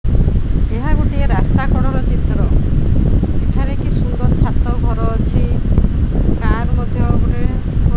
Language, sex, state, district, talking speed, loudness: Odia, female, Odisha, Khordha, 120 wpm, -17 LUFS